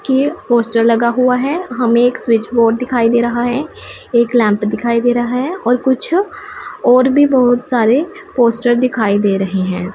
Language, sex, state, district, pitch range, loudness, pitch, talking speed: Hindi, female, Punjab, Pathankot, 230-260 Hz, -14 LUFS, 240 Hz, 180 wpm